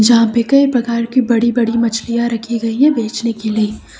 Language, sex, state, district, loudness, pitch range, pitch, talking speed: Hindi, female, Uttar Pradesh, Lucknow, -15 LUFS, 225-235 Hz, 235 Hz, 210 wpm